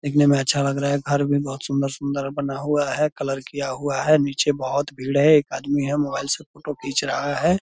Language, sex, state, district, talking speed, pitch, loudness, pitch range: Hindi, male, Bihar, Purnia, 245 wpm, 140 Hz, -22 LUFS, 140-145 Hz